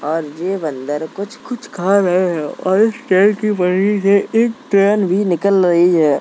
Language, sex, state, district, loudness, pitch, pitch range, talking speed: Hindi, male, Uttar Pradesh, Jalaun, -15 LUFS, 195 Hz, 175-210 Hz, 185 wpm